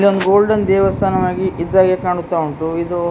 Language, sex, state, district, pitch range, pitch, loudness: Kannada, female, Karnataka, Dakshina Kannada, 170-195 Hz, 185 Hz, -16 LUFS